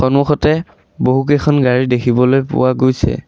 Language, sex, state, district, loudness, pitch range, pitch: Assamese, male, Assam, Sonitpur, -14 LUFS, 125-145 Hz, 130 Hz